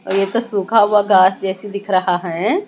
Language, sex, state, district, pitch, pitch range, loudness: Hindi, female, Odisha, Malkangiri, 195 Hz, 190-205 Hz, -16 LUFS